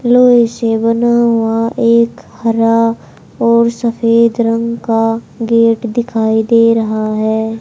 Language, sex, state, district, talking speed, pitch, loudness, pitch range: Hindi, male, Haryana, Charkhi Dadri, 120 wpm, 230 Hz, -12 LUFS, 225-235 Hz